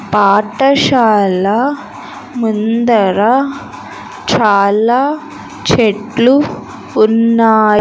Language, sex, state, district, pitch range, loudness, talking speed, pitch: Telugu, female, Andhra Pradesh, Sri Satya Sai, 210-255 Hz, -12 LUFS, 40 wpm, 225 Hz